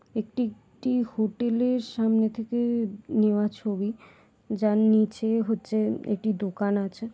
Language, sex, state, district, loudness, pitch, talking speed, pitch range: Bengali, female, West Bengal, Paschim Medinipur, -26 LUFS, 220 Hz, 120 wpm, 210-230 Hz